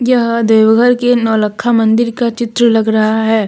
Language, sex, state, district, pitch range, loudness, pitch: Hindi, female, Jharkhand, Deoghar, 220-240 Hz, -12 LUFS, 230 Hz